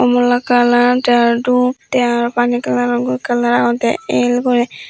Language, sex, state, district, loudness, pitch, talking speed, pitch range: Chakma, female, Tripura, Dhalai, -14 LUFS, 240 Hz, 160 wpm, 235-245 Hz